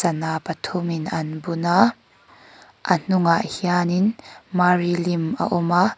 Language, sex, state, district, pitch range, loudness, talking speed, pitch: Mizo, female, Mizoram, Aizawl, 170-180 Hz, -21 LUFS, 150 wpm, 175 Hz